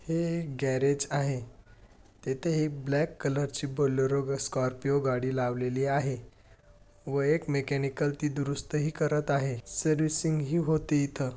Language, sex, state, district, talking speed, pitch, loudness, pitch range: Marathi, male, Maharashtra, Dhule, 125 wpm, 140 Hz, -29 LUFS, 130-150 Hz